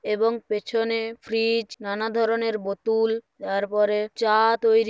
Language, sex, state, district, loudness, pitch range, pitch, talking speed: Bengali, female, West Bengal, Paschim Medinipur, -24 LUFS, 210-225 Hz, 225 Hz, 110 wpm